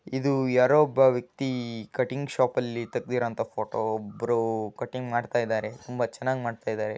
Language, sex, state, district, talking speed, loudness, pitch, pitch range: Kannada, male, Karnataka, Gulbarga, 145 wpm, -27 LUFS, 120 Hz, 115-130 Hz